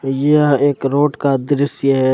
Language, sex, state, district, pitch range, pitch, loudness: Hindi, male, Jharkhand, Ranchi, 135-145 Hz, 140 Hz, -15 LUFS